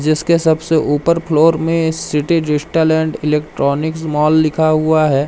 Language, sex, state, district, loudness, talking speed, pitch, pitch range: Hindi, male, Madhya Pradesh, Umaria, -15 LUFS, 145 wpm, 155 Hz, 150-160 Hz